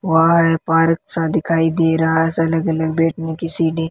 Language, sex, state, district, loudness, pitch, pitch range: Hindi, female, Rajasthan, Bikaner, -17 LUFS, 165 Hz, 160-165 Hz